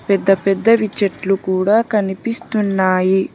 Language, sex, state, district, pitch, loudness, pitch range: Telugu, female, Telangana, Hyderabad, 195 Hz, -16 LUFS, 190-215 Hz